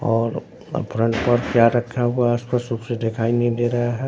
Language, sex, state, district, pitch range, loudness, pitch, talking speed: Hindi, male, Bihar, Katihar, 115-120 Hz, -21 LUFS, 120 Hz, 205 wpm